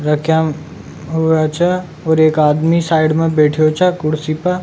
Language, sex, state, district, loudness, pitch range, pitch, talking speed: Rajasthani, male, Rajasthan, Nagaur, -14 LUFS, 155-165 Hz, 160 Hz, 155 wpm